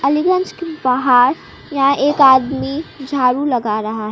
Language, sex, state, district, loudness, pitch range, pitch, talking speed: Hindi, female, Uttar Pradesh, Lucknow, -15 LUFS, 250-290 Hz, 270 Hz, 130 wpm